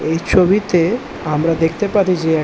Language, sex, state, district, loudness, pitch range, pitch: Bengali, male, West Bengal, Dakshin Dinajpur, -16 LUFS, 160-200 Hz, 170 Hz